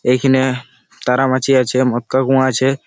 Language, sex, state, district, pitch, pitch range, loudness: Bengali, male, West Bengal, Malda, 130 Hz, 125-135 Hz, -15 LUFS